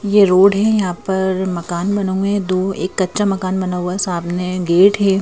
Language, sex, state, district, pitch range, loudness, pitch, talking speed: Hindi, female, Madhya Pradesh, Bhopal, 180-200 Hz, -16 LUFS, 190 Hz, 205 wpm